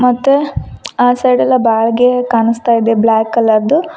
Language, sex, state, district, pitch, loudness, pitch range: Kannada, female, Karnataka, Koppal, 240 Hz, -12 LUFS, 225-250 Hz